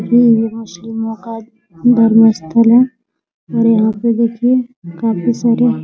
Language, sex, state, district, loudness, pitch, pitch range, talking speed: Hindi, male, Bihar, Muzaffarpur, -13 LUFS, 230 Hz, 225-235 Hz, 125 wpm